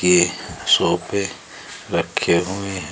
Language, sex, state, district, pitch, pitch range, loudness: Hindi, male, Uttar Pradesh, Shamli, 90 Hz, 90-100 Hz, -20 LUFS